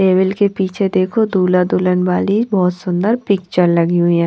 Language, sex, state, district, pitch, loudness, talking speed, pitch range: Hindi, female, Haryana, Charkhi Dadri, 185 Hz, -15 LUFS, 180 wpm, 180-200 Hz